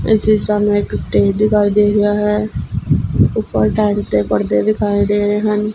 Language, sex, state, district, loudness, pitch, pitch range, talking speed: Punjabi, female, Punjab, Fazilka, -15 LUFS, 210 Hz, 205-210 Hz, 190 wpm